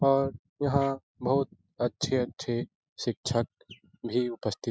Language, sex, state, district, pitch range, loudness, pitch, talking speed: Hindi, male, Bihar, Lakhisarai, 120-135 Hz, -30 LUFS, 130 Hz, 100 wpm